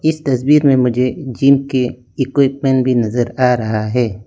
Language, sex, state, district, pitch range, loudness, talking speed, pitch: Hindi, male, Arunachal Pradesh, Lower Dibang Valley, 120-140 Hz, -15 LUFS, 170 wpm, 130 Hz